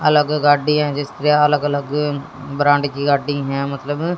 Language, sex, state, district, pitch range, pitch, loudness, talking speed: Hindi, female, Haryana, Jhajjar, 140-150 Hz, 145 Hz, -18 LUFS, 160 wpm